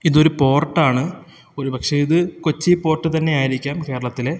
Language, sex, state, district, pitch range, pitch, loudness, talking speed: Malayalam, male, Kerala, Kozhikode, 135-160 Hz, 150 Hz, -19 LUFS, 125 wpm